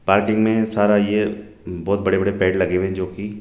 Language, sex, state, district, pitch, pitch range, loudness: Hindi, male, Rajasthan, Jaipur, 100 Hz, 95-105 Hz, -19 LUFS